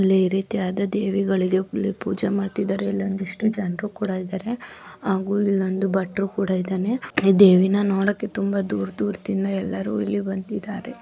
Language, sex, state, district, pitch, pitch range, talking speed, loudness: Kannada, female, Karnataka, Shimoga, 195 Hz, 190-200 Hz, 75 wpm, -23 LUFS